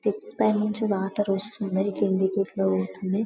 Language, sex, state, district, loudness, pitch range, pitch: Telugu, male, Telangana, Karimnagar, -26 LUFS, 190-210 Hz, 195 Hz